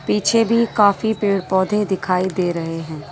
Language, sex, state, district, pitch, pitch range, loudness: Hindi, female, Delhi, New Delhi, 195 Hz, 180-210 Hz, -18 LUFS